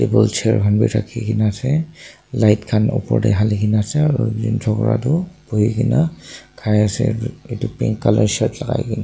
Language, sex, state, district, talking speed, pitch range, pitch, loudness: Nagamese, male, Nagaland, Dimapur, 165 wpm, 110-125 Hz, 110 Hz, -18 LUFS